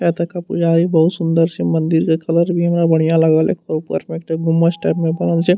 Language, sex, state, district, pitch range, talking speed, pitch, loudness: Maithili, male, Bihar, Madhepura, 160-170 Hz, 235 wpm, 165 Hz, -16 LUFS